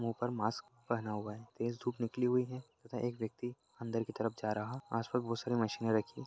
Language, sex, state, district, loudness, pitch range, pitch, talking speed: Hindi, male, Bihar, Lakhisarai, -38 LUFS, 110-125 Hz, 115 Hz, 240 wpm